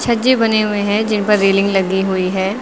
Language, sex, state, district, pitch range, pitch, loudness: Hindi, female, Uttar Pradesh, Lucknow, 195-220 Hz, 205 Hz, -15 LUFS